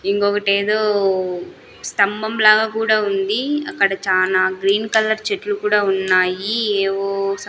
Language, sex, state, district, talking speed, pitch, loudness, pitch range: Telugu, female, Andhra Pradesh, Sri Satya Sai, 105 wpm, 200 Hz, -18 LUFS, 195-215 Hz